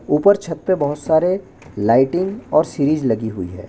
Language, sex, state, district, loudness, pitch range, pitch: Hindi, male, Chhattisgarh, Bastar, -18 LUFS, 110-175 Hz, 150 Hz